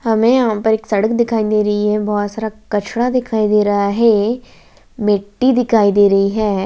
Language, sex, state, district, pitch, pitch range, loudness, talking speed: Hindi, female, Bihar, Jahanabad, 215 Hz, 205-230 Hz, -15 LUFS, 190 wpm